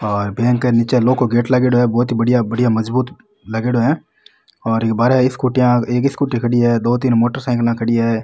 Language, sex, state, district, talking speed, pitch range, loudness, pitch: Rajasthani, male, Rajasthan, Nagaur, 220 wpm, 115-125 Hz, -16 LUFS, 120 Hz